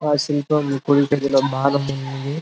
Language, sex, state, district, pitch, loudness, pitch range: Telugu, male, Telangana, Karimnagar, 140 Hz, -20 LUFS, 140-145 Hz